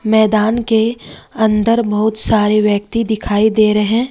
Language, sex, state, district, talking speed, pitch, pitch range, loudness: Hindi, female, Jharkhand, Ranchi, 130 wpm, 220 Hz, 210-225 Hz, -14 LUFS